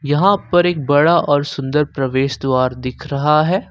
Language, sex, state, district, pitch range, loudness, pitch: Hindi, male, Jharkhand, Ranchi, 135-170 Hz, -16 LUFS, 145 Hz